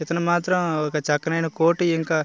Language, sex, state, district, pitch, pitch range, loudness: Telugu, male, Andhra Pradesh, Visakhapatnam, 165 Hz, 155-170 Hz, -22 LUFS